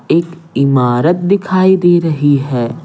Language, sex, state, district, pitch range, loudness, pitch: Hindi, male, Bihar, Patna, 140-175 Hz, -12 LUFS, 165 Hz